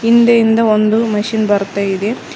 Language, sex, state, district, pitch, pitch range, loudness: Kannada, female, Karnataka, Koppal, 220 Hz, 205-230 Hz, -13 LUFS